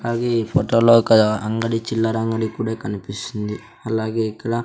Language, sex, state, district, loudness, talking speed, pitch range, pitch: Telugu, male, Andhra Pradesh, Sri Satya Sai, -20 LUFS, 170 wpm, 110-115 Hz, 115 Hz